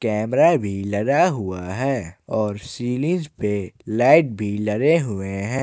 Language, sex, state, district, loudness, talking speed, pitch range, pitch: Hindi, male, Jharkhand, Ranchi, -21 LUFS, 140 wpm, 100-135 Hz, 110 Hz